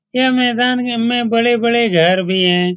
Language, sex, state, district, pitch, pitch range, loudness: Hindi, male, Bihar, Saran, 235 Hz, 185-245 Hz, -14 LUFS